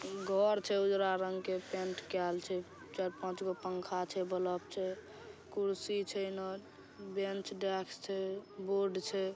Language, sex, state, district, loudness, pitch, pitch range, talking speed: Maithili, female, Bihar, Saharsa, -37 LUFS, 190 Hz, 185-195 Hz, 140 wpm